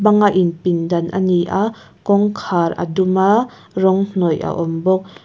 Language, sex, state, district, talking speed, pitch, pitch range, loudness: Mizo, female, Mizoram, Aizawl, 170 wpm, 190 Hz, 175-200 Hz, -17 LUFS